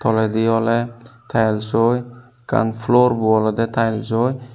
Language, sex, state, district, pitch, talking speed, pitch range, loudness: Chakma, male, Tripura, Unakoti, 115 Hz, 105 wpm, 110-120 Hz, -18 LUFS